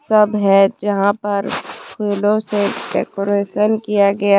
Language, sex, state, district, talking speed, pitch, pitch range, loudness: Hindi, female, Jharkhand, Deoghar, 125 wpm, 205 Hz, 200-210 Hz, -17 LUFS